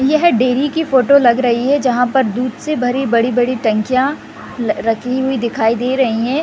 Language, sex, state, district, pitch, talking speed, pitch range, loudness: Hindi, female, Chhattisgarh, Raigarh, 250 Hz, 205 wpm, 235-265 Hz, -15 LUFS